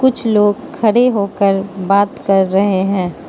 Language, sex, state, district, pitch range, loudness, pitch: Hindi, female, Mizoram, Aizawl, 195-220 Hz, -14 LUFS, 200 Hz